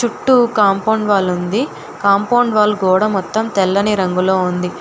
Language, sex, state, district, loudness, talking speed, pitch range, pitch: Telugu, female, Telangana, Hyderabad, -15 LUFS, 135 wpm, 190-220 Hz, 200 Hz